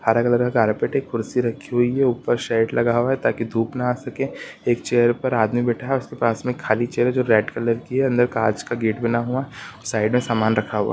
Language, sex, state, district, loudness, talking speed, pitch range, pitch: Hindi, male, Chhattisgarh, Kabirdham, -21 LUFS, 270 wpm, 115-125 Hz, 120 Hz